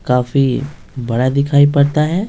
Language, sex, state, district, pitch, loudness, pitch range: Hindi, male, Bihar, Patna, 140 Hz, -15 LUFS, 125-145 Hz